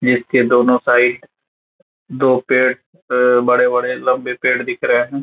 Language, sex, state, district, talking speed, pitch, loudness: Hindi, male, Bihar, Saran, 140 wpm, 125 Hz, -15 LUFS